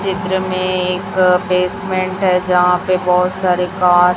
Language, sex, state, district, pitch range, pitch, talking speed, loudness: Hindi, female, Chhattisgarh, Raipur, 180-185 Hz, 180 Hz, 160 wpm, -15 LUFS